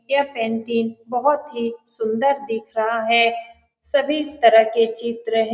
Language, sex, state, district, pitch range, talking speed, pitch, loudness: Hindi, female, Bihar, Saran, 225-275 Hz, 140 wpm, 230 Hz, -20 LUFS